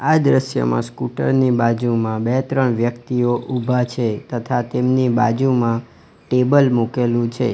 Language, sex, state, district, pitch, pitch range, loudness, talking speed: Gujarati, male, Gujarat, Valsad, 120 Hz, 115-130 Hz, -18 LUFS, 125 wpm